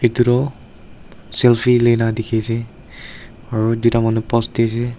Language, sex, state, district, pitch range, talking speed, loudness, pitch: Nagamese, male, Nagaland, Dimapur, 115-120 Hz, 130 wpm, -17 LUFS, 115 Hz